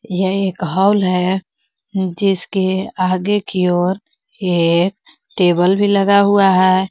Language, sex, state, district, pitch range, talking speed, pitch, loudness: Hindi, female, Jharkhand, Garhwa, 180-200 Hz, 120 wpm, 190 Hz, -15 LUFS